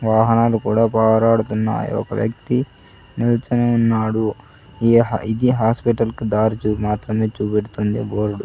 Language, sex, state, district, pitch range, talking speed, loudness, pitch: Telugu, male, Andhra Pradesh, Sri Satya Sai, 105-115 Hz, 115 wpm, -18 LUFS, 110 Hz